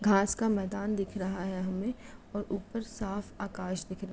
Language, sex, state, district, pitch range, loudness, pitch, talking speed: Hindi, female, Uttar Pradesh, Etah, 190-210 Hz, -34 LUFS, 200 Hz, 205 wpm